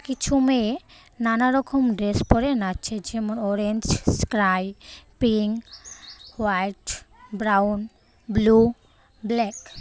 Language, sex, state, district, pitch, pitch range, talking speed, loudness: Bengali, female, Tripura, West Tripura, 220 Hz, 205-240 Hz, 90 wpm, -23 LUFS